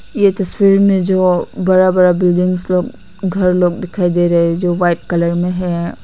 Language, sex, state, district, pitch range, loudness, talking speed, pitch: Hindi, female, Nagaland, Kohima, 175-190 Hz, -14 LUFS, 180 wpm, 180 Hz